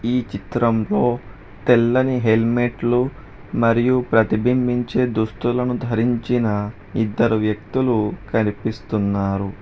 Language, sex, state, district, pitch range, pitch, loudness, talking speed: Telugu, male, Telangana, Hyderabad, 105-125 Hz, 115 Hz, -20 LUFS, 70 wpm